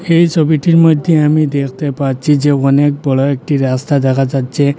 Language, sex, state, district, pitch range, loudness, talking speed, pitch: Bengali, male, Assam, Hailakandi, 135-155 Hz, -12 LUFS, 165 wpm, 145 Hz